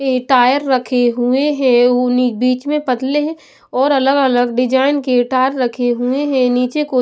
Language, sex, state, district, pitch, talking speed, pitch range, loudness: Hindi, female, Punjab, Pathankot, 255 Hz, 155 wpm, 250-275 Hz, -15 LUFS